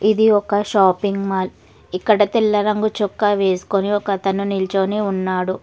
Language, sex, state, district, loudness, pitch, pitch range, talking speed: Telugu, female, Telangana, Hyderabad, -18 LUFS, 200 Hz, 190-210 Hz, 130 wpm